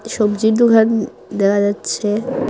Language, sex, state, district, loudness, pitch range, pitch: Bengali, female, Tripura, Unakoti, -16 LUFS, 205-230 Hz, 220 Hz